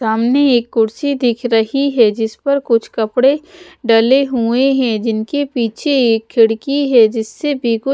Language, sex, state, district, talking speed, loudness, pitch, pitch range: Hindi, female, Odisha, Sambalpur, 150 wpm, -14 LUFS, 240 Hz, 225-280 Hz